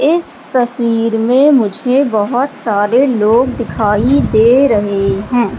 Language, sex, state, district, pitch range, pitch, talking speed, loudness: Hindi, female, Madhya Pradesh, Katni, 215-260 Hz, 235 Hz, 120 wpm, -12 LUFS